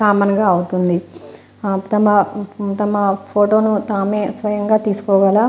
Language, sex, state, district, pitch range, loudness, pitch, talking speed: Telugu, female, Telangana, Nalgonda, 195-210 Hz, -17 LUFS, 205 Hz, 110 wpm